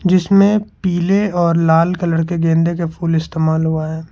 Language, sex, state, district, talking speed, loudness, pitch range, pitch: Hindi, male, Karnataka, Bangalore, 175 wpm, -15 LUFS, 160-180 Hz, 170 Hz